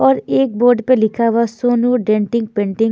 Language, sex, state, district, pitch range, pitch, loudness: Hindi, female, Punjab, Fazilka, 210-240 Hz, 230 Hz, -15 LUFS